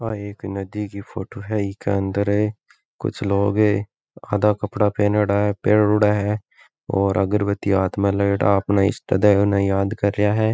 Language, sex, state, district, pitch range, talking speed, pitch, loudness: Marwari, male, Rajasthan, Nagaur, 100-105 Hz, 170 wpm, 100 Hz, -20 LUFS